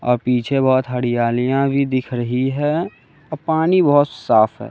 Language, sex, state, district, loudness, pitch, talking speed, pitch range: Hindi, male, Bihar, West Champaran, -18 LUFS, 130 Hz, 165 wpm, 125-145 Hz